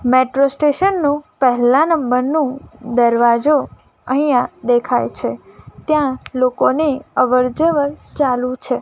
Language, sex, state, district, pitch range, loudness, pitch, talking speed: Gujarati, female, Gujarat, Gandhinagar, 250-295 Hz, -16 LUFS, 260 Hz, 110 wpm